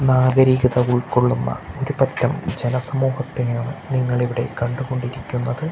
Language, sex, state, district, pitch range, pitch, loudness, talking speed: Malayalam, male, Kerala, Kasaragod, 120-130 Hz, 125 Hz, -20 LUFS, 65 wpm